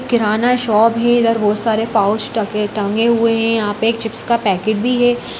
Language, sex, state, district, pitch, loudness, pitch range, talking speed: Hindi, female, Bihar, Jamui, 225 Hz, -15 LUFS, 215-235 Hz, 210 wpm